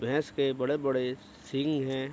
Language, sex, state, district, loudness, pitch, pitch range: Hindi, male, Bihar, Araria, -31 LUFS, 135 Hz, 130-140 Hz